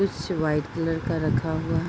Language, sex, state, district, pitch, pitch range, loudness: Hindi, female, Bihar, Bhagalpur, 160 Hz, 155-165 Hz, -26 LUFS